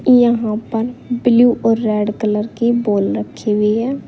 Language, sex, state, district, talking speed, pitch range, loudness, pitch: Hindi, female, Uttar Pradesh, Saharanpur, 160 wpm, 210-240 Hz, -16 LUFS, 225 Hz